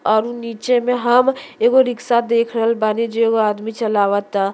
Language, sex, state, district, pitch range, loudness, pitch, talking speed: Bhojpuri, female, Uttar Pradesh, Deoria, 215-240 Hz, -17 LUFS, 230 Hz, 185 wpm